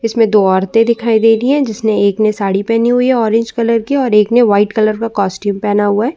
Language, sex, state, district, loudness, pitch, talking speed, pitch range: Hindi, female, Uttar Pradesh, Muzaffarnagar, -13 LUFS, 225 Hz, 245 wpm, 205-230 Hz